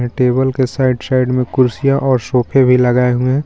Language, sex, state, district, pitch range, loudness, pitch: Hindi, female, Jharkhand, Garhwa, 125-130 Hz, -14 LUFS, 130 Hz